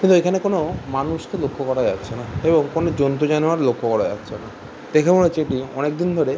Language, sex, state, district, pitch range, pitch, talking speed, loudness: Bengali, male, West Bengal, Jhargram, 135-165 Hz, 155 Hz, 225 wpm, -20 LUFS